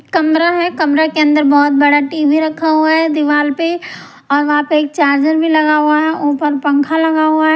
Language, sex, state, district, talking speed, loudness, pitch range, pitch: Hindi, female, Punjab, Pathankot, 215 wpm, -12 LUFS, 295-315 Hz, 310 Hz